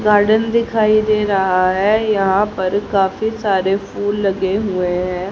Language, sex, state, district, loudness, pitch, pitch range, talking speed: Hindi, female, Haryana, Jhajjar, -16 LUFS, 200 Hz, 190-215 Hz, 145 wpm